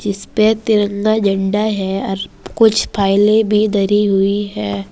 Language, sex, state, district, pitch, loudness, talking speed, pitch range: Hindi, female, Uttar Pradesh, Saharanpur, 205 Hz, -15 LUFS, 135 wpm, 195-215 Hz